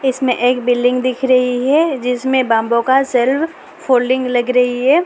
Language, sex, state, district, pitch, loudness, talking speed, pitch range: Hindi, female, Uttar Pradesh, Lalitpur, 255 Hz, -15 LUFS, 165 wpm, 245-265 Hz